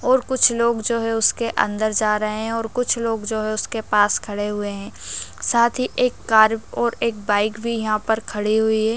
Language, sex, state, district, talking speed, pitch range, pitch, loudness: Hindi, female, Bihar, Darbhanga, 220 wpm, 215-235 Hz, 220 Hz, -20 LUFS